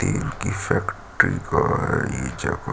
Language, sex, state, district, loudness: Hindi, male, Chhattisgarh, Sukma, -23 LUFS